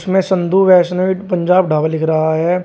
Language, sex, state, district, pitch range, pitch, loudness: Hindi, male, Uttar Pradesh, Shamli, 160-185 Hz, 180 Hz, -14 LUFS